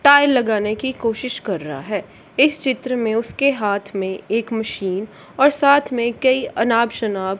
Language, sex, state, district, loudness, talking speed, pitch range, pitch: Hindi, female, Punjab, Kapurthala, -19 LUFS, 170 wpm, 215-265 Hz, 235 Hz